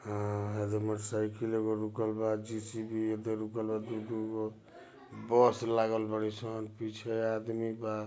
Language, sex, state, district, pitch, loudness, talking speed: Bhojpuri, male, Bihar, Gopalganj, 110 Hz, -34 LUFS, 135 wpm